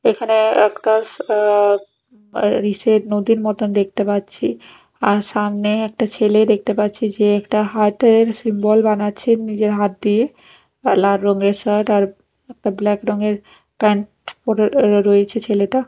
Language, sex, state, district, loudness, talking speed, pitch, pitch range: Bengali, female, Odisha, Nuapada, -17 LUFS, 130 wpm, 210 Hz, 205-220 Hz